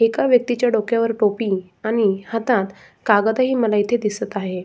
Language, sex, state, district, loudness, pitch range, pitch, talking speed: Marathi, female, Maharashtra, Sindhudurg, -19 LUFS, 205-235 Hz, 220 Hz, 155 wpm